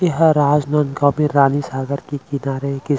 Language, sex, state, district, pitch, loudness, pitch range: Chhattisgarhi, male, Chhattisgarh, Rajnandgaon, 145 Hz, -18 LUFS, 140-150 Hz